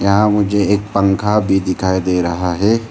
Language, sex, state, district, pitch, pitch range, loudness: Hindi, male, Arunachal Pradesh, Lower Dibang Valley, 100 Hz, 95-105 Hz, -15 LUFS